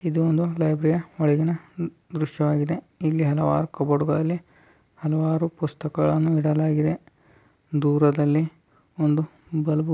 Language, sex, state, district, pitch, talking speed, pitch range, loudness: Kannada, male, Karnataka, Dharwad, 155 Hz, 115 wpm, 150-160 Hz, -24 LUFS